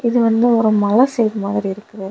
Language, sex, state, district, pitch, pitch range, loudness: Tamil, female, Tamil Nadu, Kanyakumari, 220 Hz, 205-235 Hz, -16 LUFS